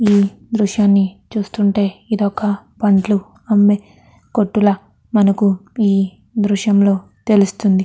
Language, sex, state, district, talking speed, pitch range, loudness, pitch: Telugu, female, Andhra Pradesh, Krishna, 90 wpm, 195-210 Hz, -16 LUFS, 205 Hz